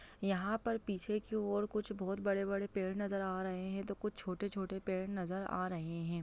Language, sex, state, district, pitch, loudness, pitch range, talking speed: Hindi, female, Bihar, Sitamarhi, 195 Hz, -39 LUFS, 190-205 Hz, 200 wpm